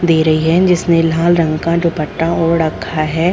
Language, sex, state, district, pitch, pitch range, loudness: Hindi, female, Chhattisgarh, Bilaspur, 165 Hz, 160-170 Hz, -14 LUFS